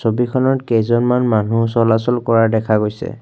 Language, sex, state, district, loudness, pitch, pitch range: Assamese, male, Assam, Kamrup Metropolitan, -16 LUFS, 115 Hz, 110-120 Hz